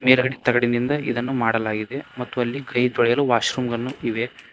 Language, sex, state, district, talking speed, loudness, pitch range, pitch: Kannada, male, Karnataka, Koppal, 145 wpm, -22 LUFS, 120-130 Hz, 125 Hz